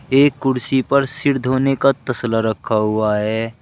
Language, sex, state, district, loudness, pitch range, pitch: Hindi, male, Uttar Pradesh, Shamli, -18 LUFS, 110-135 Hz, 130 Hz